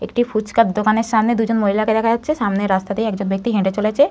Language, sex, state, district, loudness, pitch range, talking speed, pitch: Bengali, female, West Bengal, Malda, -18 LUFS, 205-230 Hz, 220 wpm, 220 Hz